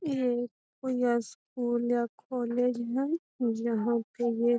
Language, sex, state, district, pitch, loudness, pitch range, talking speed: Magahi, female, Bihar, Gaya, 240 Hz, -31 LUFS, 235-250 Hz, 130 wpm